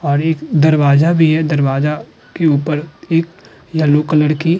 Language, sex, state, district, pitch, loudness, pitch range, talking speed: Hindi, female, Uttar Pradesh, Hamirpur, 155 Hz, -14 LUFS, 150-160 Hz, 170 wpm